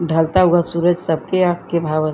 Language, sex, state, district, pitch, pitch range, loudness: Bhojpuri, female, Uttar Pradesh, Gorakhpur, 170 Hz, 160-175 Hz, -17 LUFS